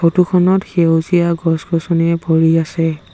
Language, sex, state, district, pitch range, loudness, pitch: Assamese, male, Assam, Sonitpur, 165-175 Hz, -15 LUFS, 170 Hz